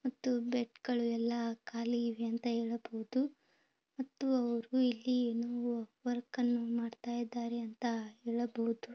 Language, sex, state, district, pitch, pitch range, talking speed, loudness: Kannada, female, Karnataka, Bellary, 235 Hz, 230-245 Hz, 115 wpm, -36 LUFS